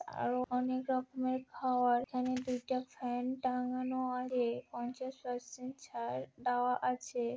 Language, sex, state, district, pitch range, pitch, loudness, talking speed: Bengali, female, West Bengal, Malda, 245-255 Hz, 250 Hz, -37 LUFS, 115 wpm